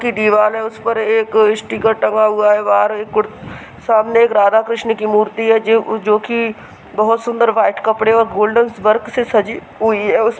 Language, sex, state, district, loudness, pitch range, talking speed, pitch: Hindi, male, Uttar Pradesh, Hamirpur, -14 LUFS, 215-225 Hz, 190 wpm, 220 Hz